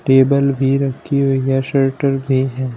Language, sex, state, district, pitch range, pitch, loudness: Hindi, male, Uttar Pradesh, Shamli, 135-140 Hz, 135 Hz, -16 LUFS